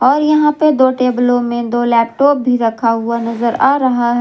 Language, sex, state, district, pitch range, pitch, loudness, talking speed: Hindi, female, Jharkhand, Garhwa, 235-270 Hz, 245 Hz, -13 LUFS, 200 wpm